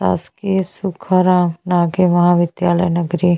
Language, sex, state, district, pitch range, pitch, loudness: Hindi, female, Chhattisgarh, Bastar, 175-185 Hz, 175 Hz, -16 LUFS